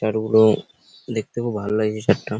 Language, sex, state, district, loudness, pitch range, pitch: Bengali, male, West Bengal, Purulia, -21 LUFS, 105-110 Hz, 110 Hz